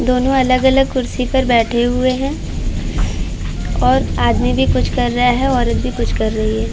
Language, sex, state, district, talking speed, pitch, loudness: Hindi, female, Uttar Pradesh, Varanasi, 180 wpm, 240 Hz, -16 LUFS